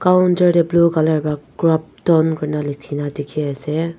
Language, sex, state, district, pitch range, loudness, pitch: Nagamese, female, Nagaland, Dimapur, 150-170 Hz, -18 LUFS, 160 Hz